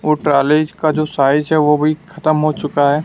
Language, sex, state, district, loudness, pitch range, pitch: Hindi, male, Madhya Pradesh, Dhar, -15 LUFS, 150-155 Hz, 155 Hz